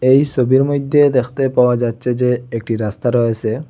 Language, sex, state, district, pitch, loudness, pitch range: Bengali, male, Assam, Hailakandi, 125 Hz, -16 LUFS, 120-135 Hz